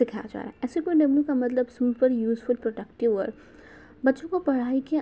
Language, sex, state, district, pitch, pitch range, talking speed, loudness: Hindi, female, Uttar Pradesh, Gorakhpur, 255 Hz, 240-285 Hz, 205 wpm, -26 LUFS